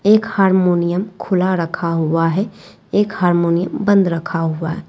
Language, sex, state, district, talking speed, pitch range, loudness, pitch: Hindi, female, Bihar, Saran, 145 wpm, 170-195 Hz, -17 LUFS, 180 Hz